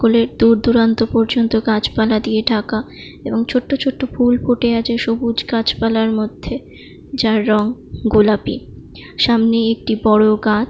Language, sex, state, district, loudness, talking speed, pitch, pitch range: Bengali, female, West Bengal, Jalpaiguri, -16 LUFS, 140 wpm, 225 Hz, 220-235 Hz